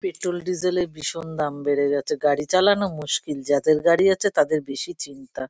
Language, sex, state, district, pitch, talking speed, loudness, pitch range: Bengali, female, West Bengal, Kolkata, 155 Hz, 175 wpm, -22 LUFS, 145-180 Hz